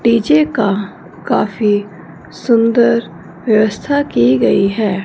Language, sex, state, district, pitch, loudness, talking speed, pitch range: Hindi, female, Punjab, Fazilka, 215 Hz, -14 LUFS, 95 wpm, 195-235 Hz